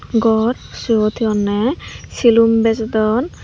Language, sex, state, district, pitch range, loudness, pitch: Chakma, female, Tripura, Dhalai, 220-235 Hz, -16 LUFS, 225 Hz